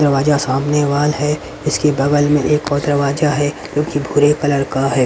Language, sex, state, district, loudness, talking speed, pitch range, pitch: Hindi, male, Haryana, Rohtak, -16 LUFS, 200 wpm, 140-150 Hz, 145 Hz